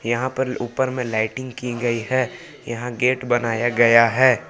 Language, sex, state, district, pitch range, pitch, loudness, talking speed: Hindi, male, Jharkhand, Palamu, 120-130 Hz, 120 Hz, -20 LUFS, 175 wpm